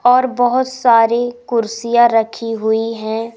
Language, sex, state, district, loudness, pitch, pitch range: Hindi, female, Madhya Pradesh, Umaria, -15 LUFS, 230 Hz, 225-245 Hz